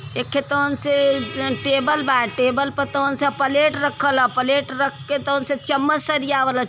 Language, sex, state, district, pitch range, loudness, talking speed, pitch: Bhojpuri, female, Uttar Pradesh, Varanasi, 270-285 Hz, -19 LUFS, 215 wpm, 280 Hz